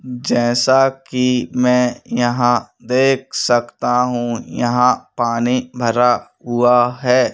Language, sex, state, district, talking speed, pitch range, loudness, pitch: Hindi, male, Madhya Pradesh, Bhopal, 100 wpm, 120-125 Hz, -16 LUFS, 125 Hz